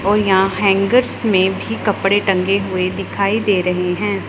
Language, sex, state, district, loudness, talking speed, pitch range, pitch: Hindi, female, Punjab, Pathankot, -16 LUFS, 170 wpm, 190-205 Hz, 195 Hz